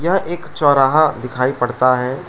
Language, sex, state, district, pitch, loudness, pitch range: Hindi, male, Arunachal Pradesh, Lower Dibang Valley, 135 Hz, -16 LUFS, 125-155 Hz